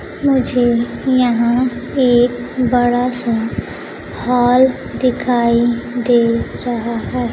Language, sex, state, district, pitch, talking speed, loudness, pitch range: Hindi, female, Bihar, Kaimur, 245 Hz, 80 wpm, -16 LUFS, 235-250 Hz